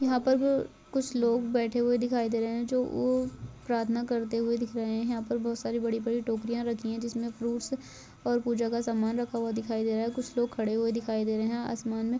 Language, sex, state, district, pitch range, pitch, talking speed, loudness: Hindi, female, Rajasthan, Nagaur, 225-240 Hz, 235 Hz, 230 wpm, -30 LUFS